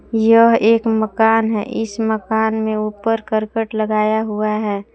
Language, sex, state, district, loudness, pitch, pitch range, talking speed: Hindi, female, Jharkhand, Palamu, -17 LUFS, 220 Hz, 215-225 Hz, 145 wpm